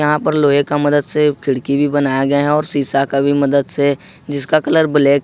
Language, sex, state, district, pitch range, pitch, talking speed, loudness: Hindi, male, Jharkhand, Ranchi, 140-150 Hz, 145 Hz, 230 wpm, -15 LUFS